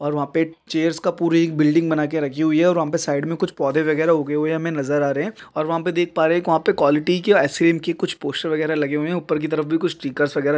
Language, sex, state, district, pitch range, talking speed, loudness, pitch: Hindi, male, West Bengal, Kolkata, 150-170 Hz, 305 wpm, -20 LUFS, 160 Hz